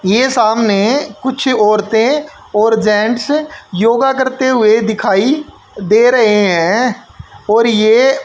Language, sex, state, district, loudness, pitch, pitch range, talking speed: Hindi, male, Haryana, Jhajjar, -12 LUFS, 225 Hz, 215-260 Hz, 110 wpm